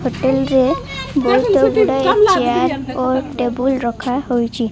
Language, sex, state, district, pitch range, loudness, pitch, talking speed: Odia, female, Odisha, Malkangiri, 245-270 Hz, -16 LUFS, 260 Hz, 100 wpm